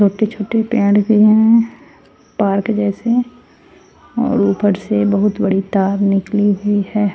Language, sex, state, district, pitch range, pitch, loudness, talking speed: Hindi, female, Haryana, Charkhi Dadri, 200-220 Hz, 205 Hz, -15 LUFS, 140 wpm